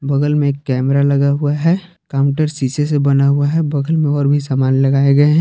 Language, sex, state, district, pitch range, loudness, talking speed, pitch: Hindi, male, Jharkhand, Palamu, 140-150 Hz, -15 LUFS, 235 wpm, 145 Hz